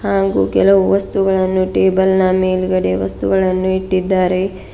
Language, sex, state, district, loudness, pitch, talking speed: Kannada, female, Karnataka, Bidar, -15 LUFS, 185 Hz, 100 wpm